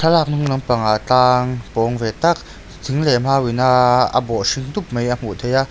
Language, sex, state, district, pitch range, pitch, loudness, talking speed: Mizo, male, Mizoram, Aizawl, 120-135 Hz, 125 Hz, -17 LUFS, 220 wpm